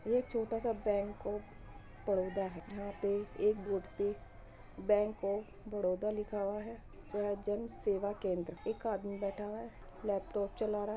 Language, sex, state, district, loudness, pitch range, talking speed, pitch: Hindi, female, Uttar Pradesh, Muzaffarnagar, -37 LUFS, 195-210 Hz, 170 wpm, 205 Hz